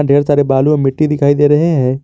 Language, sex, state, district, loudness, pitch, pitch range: Hindi, male, Jharkhand, Garhwa, -12 LUFS, 145 Hz, 135-150 Hz